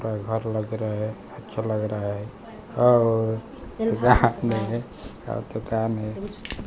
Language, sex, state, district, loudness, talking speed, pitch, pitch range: Hindi, male, Bihar, Kaimur, -25 LUFS, 125 wpm, 110 Hz, 110-115 Hz